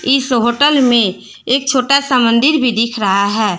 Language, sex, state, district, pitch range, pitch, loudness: Hindi, female, Jharkhand, Deoghar, 225-270 Hz, 245 Hz, -13 LUFS